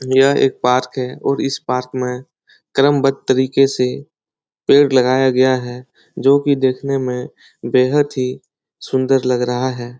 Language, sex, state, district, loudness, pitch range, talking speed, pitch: Hindi, male, Bihar, Jahanabad, -16 LUFS, 125-135 Hz, 150 wpm, 130 Hz